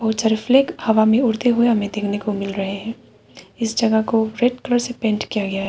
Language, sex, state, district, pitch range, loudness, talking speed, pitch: Hindi, female, Arunachal Pradesh, Papum Pare, 210-240 Hz, -19 LUFS, 230 wpm, 220 Hz